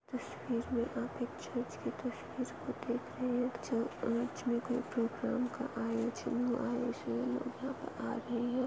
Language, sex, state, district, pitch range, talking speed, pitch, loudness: Hindi, female, Goa, North and South Goa, 235-250 Hz, 165 wpm, 245 Hz, -37 LUFS